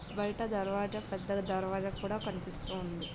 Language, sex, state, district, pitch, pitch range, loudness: Telugu, female, Andhra Pradesh, Guntur, 195 Hz, 190-205 Hz, -36 LUFS